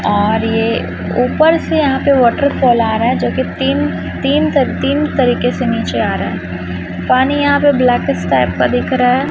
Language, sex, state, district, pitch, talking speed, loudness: Hindi, female, Chhattisgarh, Raipur, 225 Hz, 200 wpm, -14 LUFS